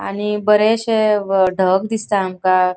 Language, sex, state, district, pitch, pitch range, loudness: Konkani, female, Goa, North and South Goa, 205 Hz, 185-215 Hz, -16 LUFS